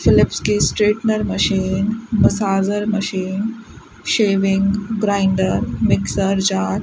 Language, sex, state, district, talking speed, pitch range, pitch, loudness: Hindi, female, Rajasthan, Bikaner, 95 wpm, 195-215 Hz, 200 Hz, -18 LUFS